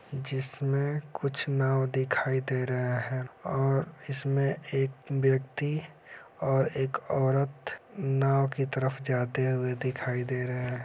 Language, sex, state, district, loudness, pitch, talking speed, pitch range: Hindi, male, Bihar, Saran, -30 LUFS, 135 Hz, 125 wpm, 130-140 Hz